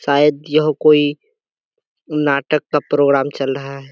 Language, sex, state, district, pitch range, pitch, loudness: Hindi, male, Bihar, Kishanganj, 140-155 Hz, 145 Hz, -16 LUFS